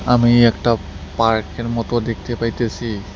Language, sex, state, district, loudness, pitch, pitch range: Bengali, male, West Bengal, Cooch Behar, -18 LUFS, 115 Hz, 105-120 Hz